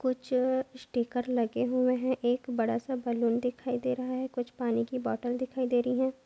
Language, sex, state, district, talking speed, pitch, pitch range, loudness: Hindi, female, Maharashtra, Aurangabad, 210 wpm, 250 Hz, 245-255 Hz, -30 LUFS